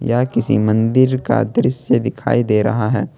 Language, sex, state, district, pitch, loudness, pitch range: Hindi, male, Jharkhand, Ranchi, 120 Hz, -16 LUFS, 110-125 Hz